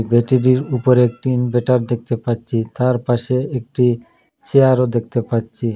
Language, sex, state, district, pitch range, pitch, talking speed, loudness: Bengali, male, Assam, Hailakandi, 120-125 Hz, 120 Hz, 135 wpm, -17 LUFS